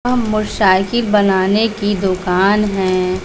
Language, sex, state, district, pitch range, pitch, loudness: Hindi, female, Bihar, West Champaran, 185-215 Hz, 200 Hz, -15 LUFS